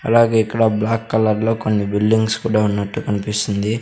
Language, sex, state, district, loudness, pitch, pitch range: Telugu, male, Andhra Pradesh, Sri Satya Sai, -18 LUFS, 110 Hz, 105-115 Hz